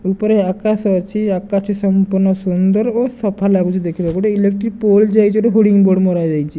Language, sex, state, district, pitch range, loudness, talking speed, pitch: Odia, male, Odisha, Nuapada, 185-215 Hz, -15 LUFS, 165 wpm, 200 Hz